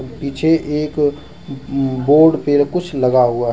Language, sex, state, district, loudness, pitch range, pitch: Hindi, male, Jharkhand, Deoghar, -16 LUFS, 135-150 Hz, 145 Hz